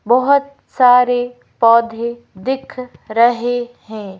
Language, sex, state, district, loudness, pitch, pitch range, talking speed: Hindi, female, Madhya Pradesh, Bhopal, -15 LUFS, 245 Hz, 230-255 Hz, 85 wpm